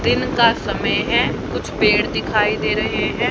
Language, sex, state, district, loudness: Hindi, female, Haryana, Jhajjar, -18 LUFS